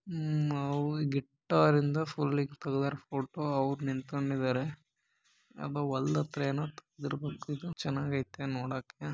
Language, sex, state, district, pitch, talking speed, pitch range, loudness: Kannada, male, Karnataka, Bellary, 140 Hz, 205 wpm, 135-150 Hz, -33 LUFS